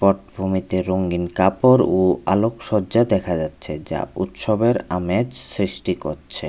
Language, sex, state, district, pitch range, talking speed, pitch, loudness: Bengali, male, Tripura, West Tripura, 90-110 Hz, 110 wpm, 95 Hz, -20 LUFS